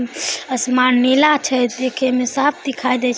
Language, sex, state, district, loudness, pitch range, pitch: Maithili, female, Bihar, Samastipur, -17 LUFS, 250-270 Hz, 255 Hz